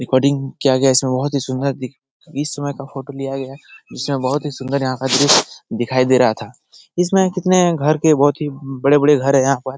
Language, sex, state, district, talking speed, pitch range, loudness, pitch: Hindi, male, Bihar, Jahanabad, 210 wpm, 130-145 Hz, -17 LUFS, 140 Hz